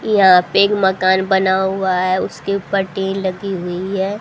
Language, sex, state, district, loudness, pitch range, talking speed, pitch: Hindi, female, Haryana, Charkhi Dadri, -16 LUFS, 185-195 Hz, 185 wpm, 190 Hz